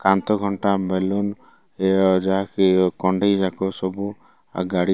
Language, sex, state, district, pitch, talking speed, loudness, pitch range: Odia, male, Odisha, Malkangiri, 95 Hz, 145 wpm, -21 LUFS, 95-100 Hz